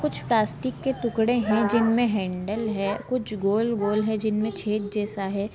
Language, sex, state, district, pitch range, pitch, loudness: Hindi, female, Andhra Pradesh, Anantapur, 205-230 Hz, 215 Hz, -25 LUFS